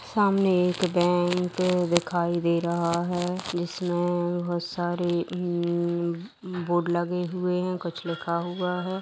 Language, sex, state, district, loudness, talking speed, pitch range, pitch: Hindi, female, Bihar, Gaya, -26 LUFS, 140 wpm, 175-180 Hz, 175 Hz